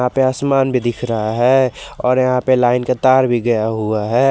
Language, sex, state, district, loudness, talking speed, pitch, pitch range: Hindi, male, Jharkhand, Garhwa, -16 LUFS, 235 wpm, 125 Hz, 120-130 Hz